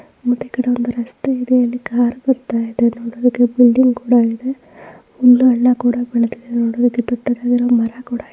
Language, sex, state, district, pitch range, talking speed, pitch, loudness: Kannada, female, Karnataka, Mysore, 240-250 Hz, 95 wpm, 245 Hz, -16 LUFS